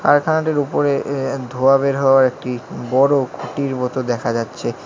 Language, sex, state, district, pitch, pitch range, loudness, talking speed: Bengali, male, West Bengal, Alipurduar, 135 Hz, 125-140 Hz, -18 LUFS, 160 wpm